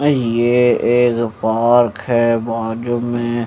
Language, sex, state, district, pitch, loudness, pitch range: Hindi, male, Chandigarh, Chandigarh, 120 Hz, -16 LUFS, 115-120 Hz